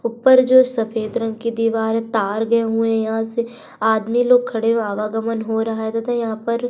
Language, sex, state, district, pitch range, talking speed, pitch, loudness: Hindi, female, Uttar Pradesh, Budaun, 220-235 Hz, 225 wpm, 225 Hz, -19 LUFS